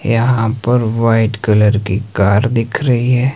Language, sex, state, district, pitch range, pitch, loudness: Hindi, male, Himachal Pradesh, Shimla, 105-125 Hz, 115 Hz, -14 LUFS